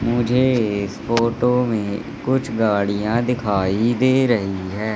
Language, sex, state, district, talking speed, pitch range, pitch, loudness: Hindi, male, Madhya Pradesh, Katni, 120 wpm, 100-125 Hz, 115 Hz, -19 LUFS